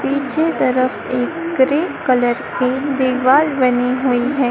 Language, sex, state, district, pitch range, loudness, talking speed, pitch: Hindi, female, Madhya Pradesh, Dhar, 255-285 Hz, -17 LUFS, 135 wpm, 260 Hz